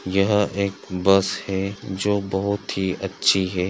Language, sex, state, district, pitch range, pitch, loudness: Hindi, male, Andhra Pradesh, Chittoor, 95-100 Hz, 95 Hz, -22 LUFS